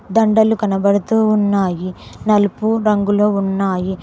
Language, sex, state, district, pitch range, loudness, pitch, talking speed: Telugu, female, Telangana, Mahabubabad, 195-215 Hz, -16 LUFS, 205 Hz, 90 wpm